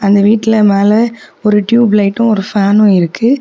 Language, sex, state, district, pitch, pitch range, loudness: Tamil, female, Tamil Nadu, Kanyakumari, 210 Hz, 200-225 Hz, -10 LUFS